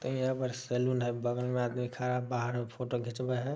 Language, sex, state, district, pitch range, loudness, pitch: Maithili, male, Bihar, Samastipur, 120-125 Hz, -34 LUFS, 125 Hz